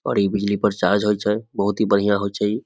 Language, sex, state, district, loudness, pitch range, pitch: Maithili, male, Bihar, Samastipur, -20 LUFS, 100-105 Hz, 100 Hz